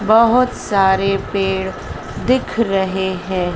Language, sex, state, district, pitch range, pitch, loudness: Hindi, female, Madhya Pradesh, Dhar, 190-225 Hz, 195 Hz, -17 LUFS